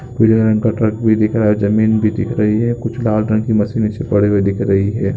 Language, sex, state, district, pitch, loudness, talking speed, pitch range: Hindi, male, Uttarakhand, Uttarkashi, 110 Hz, -15 LUFS, 280 wpm, 105-110 Hz